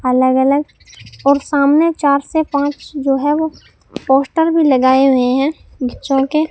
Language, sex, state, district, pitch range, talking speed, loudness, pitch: Hindi, male, Rajasthan, Bikaner, 270-305 Hz, 155 wpm, -15 LUFS, 280 Hz